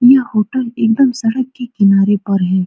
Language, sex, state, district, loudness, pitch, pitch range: Hindi, female, Bihar, Supaul, -14 LUFS, 225 Hz, 200-250 Hz